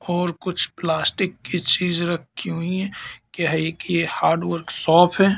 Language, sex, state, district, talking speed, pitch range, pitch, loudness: Hindi, male, Madhya Pradesh, Katni, 165 wpm, 165-180 Hz, 175 Hz, -20 LUFS